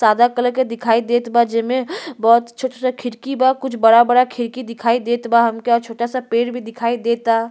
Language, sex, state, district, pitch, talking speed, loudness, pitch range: Bhojpuri, female, Uttar Pradesh, Gorakhpur, 235 Hz, 200 wpm, -17 LUFS, 230-250 Hz